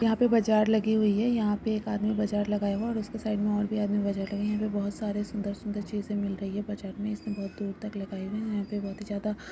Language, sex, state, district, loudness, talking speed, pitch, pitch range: Hindi, female, West Bengal, Purulia, -29 LUFS, 290 wpm, 210 Hz, 205-215 Hz